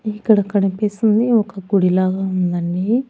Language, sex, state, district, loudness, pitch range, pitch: Telugu, female, Andhra Pradesh, Annamaya, -17 LUFS, 185-215 Hz, 200 Hz